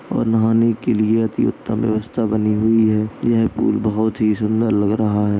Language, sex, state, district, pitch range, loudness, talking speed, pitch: Hindi, male, Uttar Pradesh, Jalaun, 105-115 Hz, -18 LUFS, 200 wpm, 110 Hz